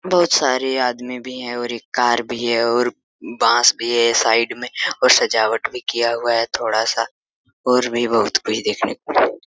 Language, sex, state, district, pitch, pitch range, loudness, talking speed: Hindi, male, Jharkhand, Sahebganj, 120 Hz, 115-125 Hz, -18 LUFS, 190 wpm